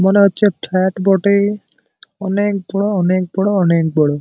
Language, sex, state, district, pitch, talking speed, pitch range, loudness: Bengali, male, West Bengal, Malda, 195 Hz, 170 wpm, 185-200 Hz, -15 LUFS